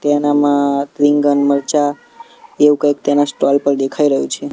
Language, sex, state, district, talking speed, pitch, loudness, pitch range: Gujarati, male, Gujarat, Gandhinagar, 145 wpm, 145 Hz, -14 LUFS, 140-145 Hz